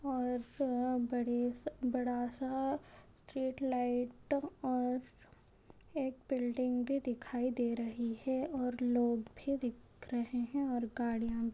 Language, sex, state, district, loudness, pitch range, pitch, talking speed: Hindi, male, Maharashtra, Dhule, -37 LUFS, 240-265 Hz, 250 Hz, 130 wpm